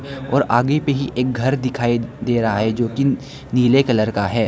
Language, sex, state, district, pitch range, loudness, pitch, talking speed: Hindi, male, Arunachal Pradesh, Lower Dibang Valley, 115-135 Hz, -19 LUFS, 125 Hz, 215 wpm